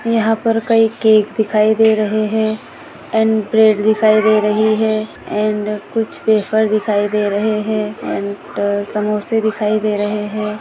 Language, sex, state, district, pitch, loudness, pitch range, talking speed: Hindi, female, Maharashtra, Dhule, 215 Hz, -16 LUFS, 210-220 Hz, 160 wpm